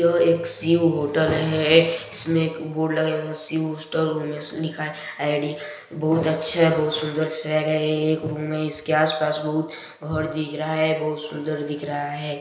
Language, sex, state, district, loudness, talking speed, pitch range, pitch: Hindi, male, Chhattisgarh, Balrampur, -23 LUFS, 190 wpm, 155-160 Hz, 155 Hz